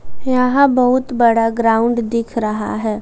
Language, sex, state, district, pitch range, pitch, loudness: Hindi, female, Bihar, West Champaran, 225-250 Hz, 235 Hz, -15 LUFS